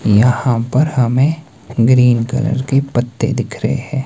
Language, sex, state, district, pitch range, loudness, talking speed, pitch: Hindi, male, Himachal Pradesh, Shimla, 120-135 Hz, -15 LUFS, 150 wpm, 125 Hz